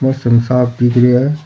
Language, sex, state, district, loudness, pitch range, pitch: Rajasthani, male, Rajasthan, Churu, -12 LUFS, 120-130 Hz, 125 Hz